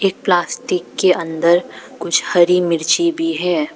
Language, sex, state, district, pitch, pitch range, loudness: Hindi, female, Arunachal Pradesh, Papum Pare, 175 Hz, 170-185 Hz, -16 LUFS